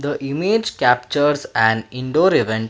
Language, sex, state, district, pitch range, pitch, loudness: English, male, Karnataka, Bangalore, 110-145 Hz, 135 Hz, -18 LUFS